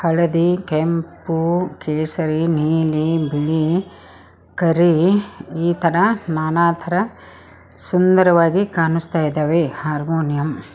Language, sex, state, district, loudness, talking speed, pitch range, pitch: Kannada, female, Karnataka, Koppal, -18 LUFS, 80 wpm, 155-170 Hz, 165 Hz